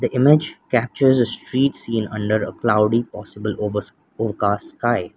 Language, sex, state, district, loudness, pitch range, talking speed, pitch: English, male, Sikkim, Gangtok, -20 LUFS, 105-125 Hz, 150 wpm, 115 Hz